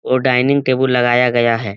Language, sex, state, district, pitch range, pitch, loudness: Hindi, male, Bihar, Lakhisarai, 120-130 Hz, 125 Hz, -14 LUFS